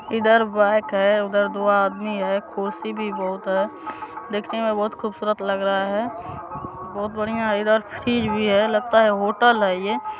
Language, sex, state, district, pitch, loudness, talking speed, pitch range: Hindi, male, Bihar, Supaul, 210 Hz, -21 LUFS, 175 wpm, 200-220 Hz